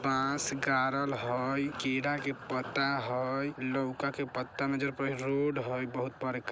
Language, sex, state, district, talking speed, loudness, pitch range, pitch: Bajjika, male, Bihar, Vaishali, 145 wpm, -33 LUFS, 130-140 Hz, 135 Hz